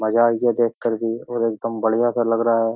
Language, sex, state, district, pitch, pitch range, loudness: Hindi, male, Uttar Pradesh, Jyotiba Phule Nagar, 115 Hz, 115-120 Hz, -20 LUFS